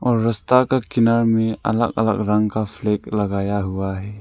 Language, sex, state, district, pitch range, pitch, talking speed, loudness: Hindi, male, Arunachal Pradesh, Lower Dibang Valley, 105-115 Hz, 110 Hz, 170 wpm, -20 LUFS